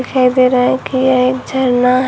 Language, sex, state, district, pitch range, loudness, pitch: Hindi, female, Uttar Pradesh, Shamli, 250-260 Hz, -13 LUFS, 255 Hz